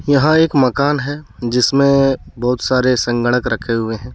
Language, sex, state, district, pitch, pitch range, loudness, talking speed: Hindi, male, Jharkhand, Deoghar, 130 Hz, 120-140 Hz, -15 LUFS, 160 wpm